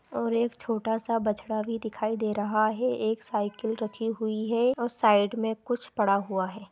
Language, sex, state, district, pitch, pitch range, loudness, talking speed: Hindi, female, Chhattisgarh, Kabirdham, 220 Hz, 215-230 Hz, -28 LUFS, 195 wpm